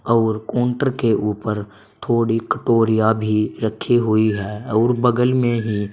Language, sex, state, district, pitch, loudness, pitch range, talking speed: Hindi, male, Uttar Pradesh, Saharanpur, 110 Hz, -19 LUFS, 105-120 Hz, 140 wpm